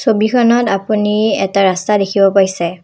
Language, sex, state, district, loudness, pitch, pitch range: Assamese, female, Assam, Kamrup Metropolitan, -13 LUFS, 200 Hz, 195-215 Hz